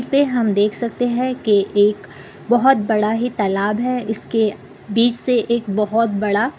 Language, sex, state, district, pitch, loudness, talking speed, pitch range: Hindi, female, Bihar, Kishanganj, 225 Hz, -18 LUFS, 165 wpm, 210-245 Hz